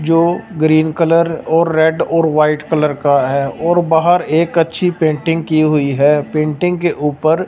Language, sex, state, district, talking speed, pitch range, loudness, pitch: Hindi, male, Punjab, Fazilka, 170 wpm, 150-165 Hz, -14 LUFS, 160 Hz